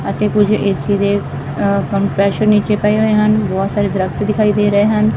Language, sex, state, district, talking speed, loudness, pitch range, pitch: Punjabi, female, Punjab, Fazilka, 185 wpm, -15 LUFS, 195-210 Hz, 205 Hz